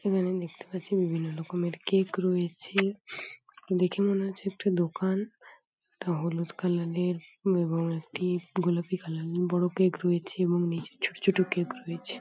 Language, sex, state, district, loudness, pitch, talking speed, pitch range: Bengali, female, West Bengal, Paschim Medinipur, -30 LUFS, 180 Hz, 145 wpm, 170-190 Hz